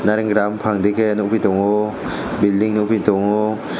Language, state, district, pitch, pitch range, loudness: Kokborok, Tripura, West Tripura, 105 Hz, 100-110 Hz, -18 LUFS